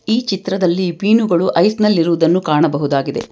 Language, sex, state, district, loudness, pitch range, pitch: Kannada, female, Karnataka, Bangalore, -15 LUFS, 165-195 Hz, 180 Hz